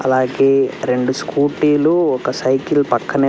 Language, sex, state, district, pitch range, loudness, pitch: Telugu, male, Andhra Pradesh, Sri Satya Sai, 130-145 Hz, -16 LUFS, 135 Hz